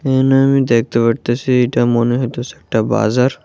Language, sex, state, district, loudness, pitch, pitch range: Bengali, male, Tripura, West Tripura, -15 LUFS, 125 Hz, 115-130 Hz